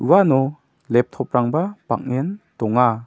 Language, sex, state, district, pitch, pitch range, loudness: Garo, male, Meghalaya, South Garo Hills, 135 Hz, 125-165 Hz, -20 LUFS